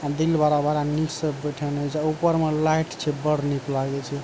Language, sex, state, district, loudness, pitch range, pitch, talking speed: Maithili, male, Bihar, Supaul, -24 LUFS, 145-155 Hz, 150 Hz, 210 wpm